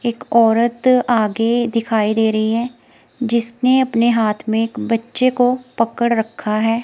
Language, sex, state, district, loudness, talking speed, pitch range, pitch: Hindi, female, Himachal Pradesh, Shimla, -17 LUFS, 150 wpm, 225-240 Hz, 230 Hz